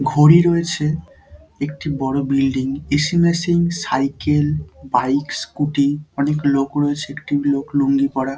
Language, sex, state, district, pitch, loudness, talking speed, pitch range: Bengali, male, West Bengal, Dakshin Dinajpur, 145 Hz, -18 LUFS, 120 wpm, 135-150 Hz